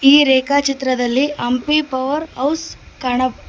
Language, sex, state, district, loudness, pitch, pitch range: Kannada, female, Karnataka, Koppal, -17 LUFS, 275 Hz, 255-290 Hz